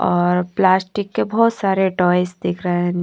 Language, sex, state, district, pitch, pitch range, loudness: Hindi, female, Haryana, Charkhi Dadri, 180 Hz, 180-195 Hz, -18 LUFS